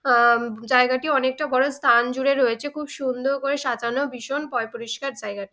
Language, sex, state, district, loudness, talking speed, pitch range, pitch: Bengali, female, West Bengal, Dakshin Dinajpur, -22 LUFS, 165 wpm, 235-275 Hz, 255 Hz